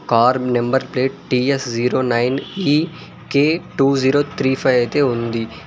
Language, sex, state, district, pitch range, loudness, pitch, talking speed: Telugu, male, Telangana, Mahabubabad, 125-140 Hz, -18 LUFS, 130 Hz, 150 wpm